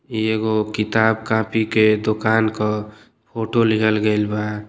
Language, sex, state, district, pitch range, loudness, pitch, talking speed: Bhojpuri, male, Uttar Pradesh, Deoria, 105-110 Hz, -19 LUFS, 110 Hz, 125 wpm